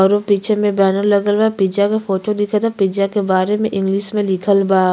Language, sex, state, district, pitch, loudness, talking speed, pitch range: Bhojpuri, female, Uttar Pradesh, Gorakhpur, 200 Hz, -16 LUFS, 205 wpm, 195-210 Hz